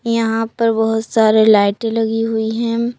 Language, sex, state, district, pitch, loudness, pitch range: Hindi, female, Jharkhand, Palamu, 225 Hz, -16 LUFS, 220-230 Hz